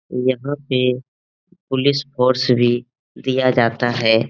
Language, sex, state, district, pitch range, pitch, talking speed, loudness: Hindi, male, Bihar, Jahanabad, 120-135 Hz, 130 Hz, 110 wpm, -18 LUFS